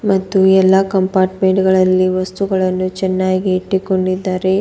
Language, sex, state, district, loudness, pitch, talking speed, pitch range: Kannada, female, Karnataka, Bidar, -15 LUFS, 190 Hz, 90 wpm, 185-190 Hz